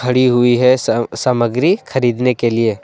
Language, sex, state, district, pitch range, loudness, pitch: Hindi, male, Jharkhand, Deoghar, 115-125 Hz, -14 LUFS, 125 Hz